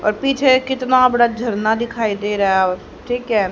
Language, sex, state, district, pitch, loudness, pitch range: Hindi, female, Haryana, Jhajjar, 235 Hz, -17 LUFS, 210-255 Hz